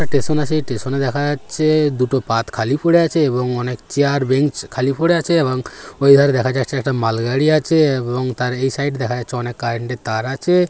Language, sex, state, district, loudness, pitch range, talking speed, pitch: Bengali, male, West Bengal, Jhargram, -17 LUFS, 125-145 Hz, 220 wpm, 135 Hz